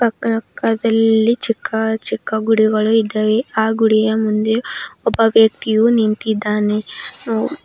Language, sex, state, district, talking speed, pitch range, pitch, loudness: Kannada, female, Karnataka, Bidar, 85 wpm, 215-225 Hz, 220 Hz, -16 LUFS